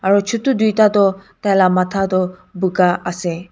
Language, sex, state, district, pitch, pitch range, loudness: Nagamese, female, Nagaland, Kohima, 190 Hz, 185-205 Hz, -16 LUFS